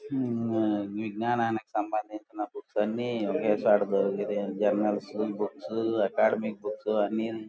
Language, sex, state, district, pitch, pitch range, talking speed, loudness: Telugu, male, Andhra Pradesh, Guntur, 110 Hz, 105-115 Hz, 95 wpm, -29 LUFS